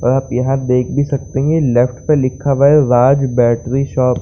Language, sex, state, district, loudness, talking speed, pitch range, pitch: Hindi, male, Bihar, Saran, -14 LUFS, 215 wpm, 125-140 Hz, 130 Hz